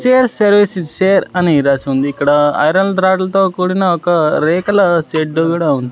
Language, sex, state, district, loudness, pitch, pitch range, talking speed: Telugu, male, Andhra Pradesh, Sri Satya Sai, -13 LUFS, 175 Hz, 155-195 Hz, 160 wpm